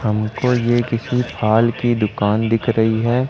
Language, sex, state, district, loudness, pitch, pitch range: Hindi, male, Madhya Pradesh, Katni, -18 LUFS, 115 Hz, 110-120 Hz